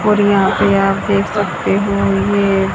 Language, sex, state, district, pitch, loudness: Hindi, female, Haryana, Jhajjar, 190 Hz, -14 LUFS